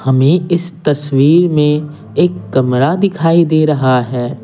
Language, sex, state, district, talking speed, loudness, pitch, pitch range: Hindi, male, Bihar, Patna, 135 wpm, -13 LUFS, 150 Hz, 130-165 Hz